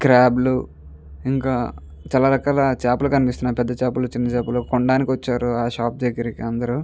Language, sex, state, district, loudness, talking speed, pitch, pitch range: Telugu, male, Andhra Pradesh, Guntur, -20 LUFS, 150 wpm, 125 Hz, 120-130 Hz